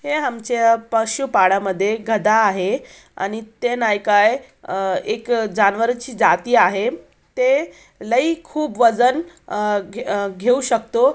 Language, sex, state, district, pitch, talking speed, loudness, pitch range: Marathi, female, Maharashtra, Aurangabad, 225 Hz, 125 wpm, -19 LUFS, 205-250 Hz